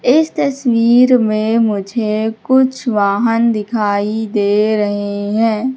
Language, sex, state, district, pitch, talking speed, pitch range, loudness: Hindi, female, Madhya Pradesh, Katni, 220 Hz, 105 wpm, 210-245 Hz, -14 LUFS